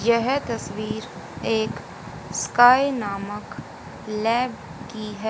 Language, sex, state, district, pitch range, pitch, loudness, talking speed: Hindi, female, Haryana, Jhajjar, 215-245 Hz, 220 Hz, -23 LUFS, 90 wpm